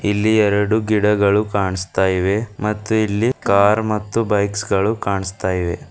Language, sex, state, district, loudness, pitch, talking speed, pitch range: Kannada, female, Karnataka, Bidar, -18 LUFS, 105 Hz, 130 wpm, 100-110 Hz